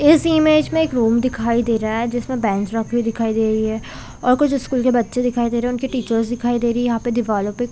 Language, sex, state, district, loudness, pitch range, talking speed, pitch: Hindi, female, Chhattisgarh, Bilaspur, -19 LUFS, 225-250 Hz, 280 wpm, 240 Hz